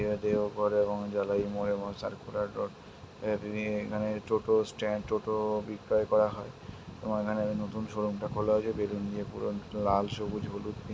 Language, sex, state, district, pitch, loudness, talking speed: Bengali, male, West Bengal, Dakshin Dinajpur, 105 Hz, -32 LUFS, 155 wpm